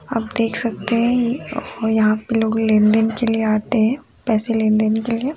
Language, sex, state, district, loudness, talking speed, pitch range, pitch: Hindi, female, Chhattisgarh, Rajnandgaon, -18 LUFS, 190 wpm, 220-235 Hz, 225 Hz